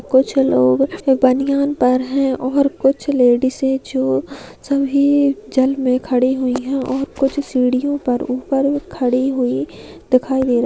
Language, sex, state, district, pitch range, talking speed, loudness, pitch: Hindi, female, Maharashtra, Nagpur, 255-275 Hz, 140 wpm, -17 LUFS, 265 Hz